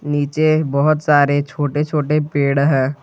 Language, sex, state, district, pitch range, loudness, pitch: Hindi, male, Jharkhand, Garhwa, 140-150 Hz, -16 LUFS, 145 Hz